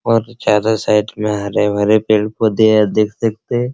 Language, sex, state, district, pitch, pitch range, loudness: Hindi, male, Bihar, Araria, 110 Hz, 105-110 Hz, -15 LUFS